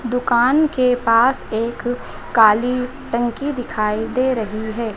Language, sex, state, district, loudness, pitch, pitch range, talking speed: Hindi, female, Madhya Pradesh, Dhar, -18 LUFS, 240 Hz, 225-250 Hz, 120 wpm